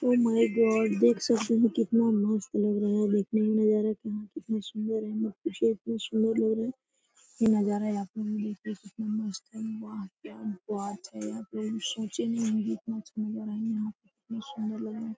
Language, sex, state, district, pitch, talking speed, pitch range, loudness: Hindi, female, Jharkhand, Sahebganj, 220 Hz, 145 wpm, 210-225 Hz, -29 LUFS